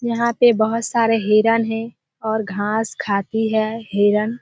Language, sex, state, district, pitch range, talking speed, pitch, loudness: Hindi, female, Bihar, Kishanganj, 215-230 Hz, 150 wpm, 225 Hz, -19 LUFS